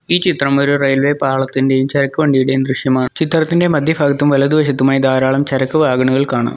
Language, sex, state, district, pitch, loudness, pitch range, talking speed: Malayalam, male, Kerala, Kollam, 140 Hz, -14 LUFS, 135-150 Hz, 155 wpm